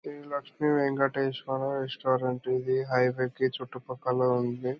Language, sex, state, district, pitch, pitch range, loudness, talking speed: Telugu, male, Andhra Pradesh, Anantapur, 130 Hz, 125-135 Hz, -29 LUFS, 140 wpm